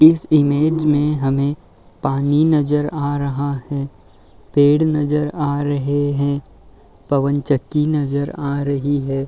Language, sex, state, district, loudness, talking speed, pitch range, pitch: Hindi, male, Uttar Pradesh, Varanasi, -18 LUFS, 130 wpm, 140-150 Hz, 145 Hz